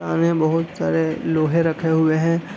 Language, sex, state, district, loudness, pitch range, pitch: Hindi, male, Bihar, East Champaran, -20 LUFS, 155-165 Hz, 160 Hz